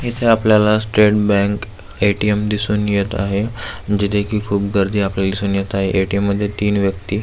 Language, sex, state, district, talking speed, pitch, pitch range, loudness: Marathi, male, Maharashtra, Aurangabad, 165 wpm, 100 Hz, 100-105 Hz, -17 LUFS